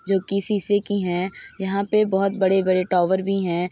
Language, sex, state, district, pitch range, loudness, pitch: Hindi, female, Uttar Pradesh, Hamirpur, 185-200 Hz, -22 LUFS, 195 Hz